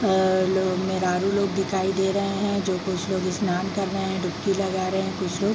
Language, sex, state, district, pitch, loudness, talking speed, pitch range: Hindi, female, Bihar, East Champaran, 190 Hz, -24 LUFS, 225 wpm, 185-195 Hz